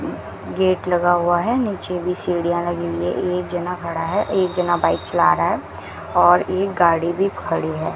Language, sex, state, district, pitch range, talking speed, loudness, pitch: Hindi, female, Rajasthan, Bikaner, 170-185 Hz, 190 wpm, -19 LUFS, 175 Hz